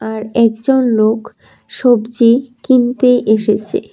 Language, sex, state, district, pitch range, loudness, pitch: Bengali, female, Tripura, West Tripura, 220-250 Hz, -13 LUFS, 235 Hz